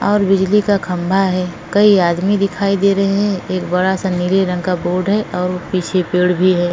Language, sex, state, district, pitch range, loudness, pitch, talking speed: Hindi, female, Uttar Pradesh, Etah, 180-200 Hz, -16 LUFS, 185 Hz, 220 wpm